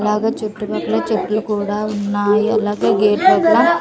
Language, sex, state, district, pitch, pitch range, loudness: Telugu, female, Andhra Pradesh, Sri Satya Sai, 210 Hz, 205-220 Hz, -17 LUFS